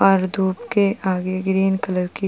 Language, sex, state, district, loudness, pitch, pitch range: Hindi, female, Uttar Pradesh, Jalaun, -20 LUFS, 190 Hz, 185-195 Hz